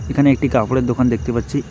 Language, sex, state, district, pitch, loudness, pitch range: Bengali, male, West Bengal, Alipurduar, 130 Hz, -17 LUFS, 120-135 Hz